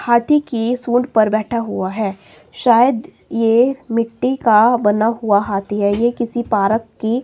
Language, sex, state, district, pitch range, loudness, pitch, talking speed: Hindi, female, Himachal Pradesh, Shimla, 215-240 Hz, -16 LUFS, 230 Hz, 155 wpm